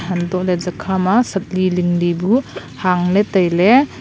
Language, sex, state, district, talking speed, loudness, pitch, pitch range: Wancho, female, Arunachal Pradesh, Longding, 180 wpm, -16 LUFS, 185 Hz, 180-195 Hz